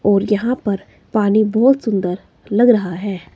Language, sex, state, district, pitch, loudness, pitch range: Hindi, female, Himachal Pradesh, Shimla, 210 Hz, -17 LUFS, 195-225 Hz